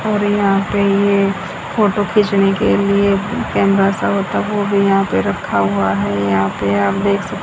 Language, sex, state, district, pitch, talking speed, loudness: Hindi, female, Haryana, Jhajjar, 200 Hz, 195 wpm, -15 LUFS